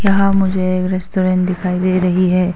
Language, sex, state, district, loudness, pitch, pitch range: Hindi, female, Arunachal Pradesh, Papum Pare, -16 LUFS, 185 Hz, 180-190 Hz